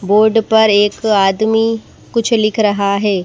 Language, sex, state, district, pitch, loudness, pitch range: Hindi, female, Madhya Pradesh, Bhopal, 215 Hz, -13 LUFS, 205-225 Hz